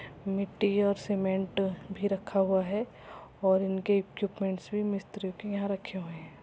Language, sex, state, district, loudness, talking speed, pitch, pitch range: Hindi, female, Uttar Pradesh, Muzaffarnagar, -31 LUFS, 150 wpm, 195 Hz, 190-200 Hz